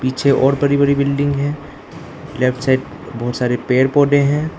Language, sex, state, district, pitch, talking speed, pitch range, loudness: Hindi, male, Arunachal Pradesh, Lower Dibang Valley, 140 Hz, 170 wpm, 130-145 Hz, -16 LUFS